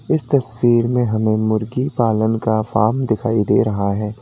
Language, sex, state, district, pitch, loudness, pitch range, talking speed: Hindi, male, Uttar Pradesh, Lalitpur, 110 Hz, -17 LUFS, 110-120 Hz, 170 wpm